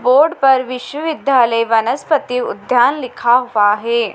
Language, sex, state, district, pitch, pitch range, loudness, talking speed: Hindi, female, Madhya Pradesh, Dhar, 250 Hz, 235-275 Hz, -15 LUFS, 115 wpm